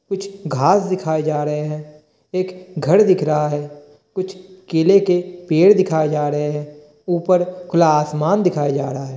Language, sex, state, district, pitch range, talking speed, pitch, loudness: Hindi, male, Bihar, Kishanganj, 150-185 Hz, 170 wpm, 160 Hz, -18 LUFS